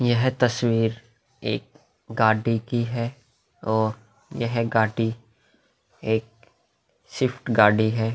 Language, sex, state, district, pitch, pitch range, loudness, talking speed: Hindi, male, Uttar Pradesh, Hamirpur, 115 Hz, 110-120 Hz, -24 LUFS, 95 wpm